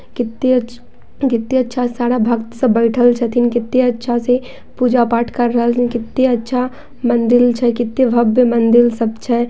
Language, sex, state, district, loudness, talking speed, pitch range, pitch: Maithili, female, Bihar, Samastipur, -15 LUFS, 165 wpm, 235-250 Hz, 240 Hz